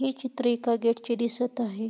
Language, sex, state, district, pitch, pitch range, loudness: Marathi, female, Maharashtra, Pune, 235 Hz, 230-245 Hz, -28 LUFS